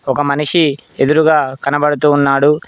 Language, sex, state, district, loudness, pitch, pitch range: Telugu, male, Telangana, Mahabubabad, -13 LUFS, 145 Hz, 140-150 Hz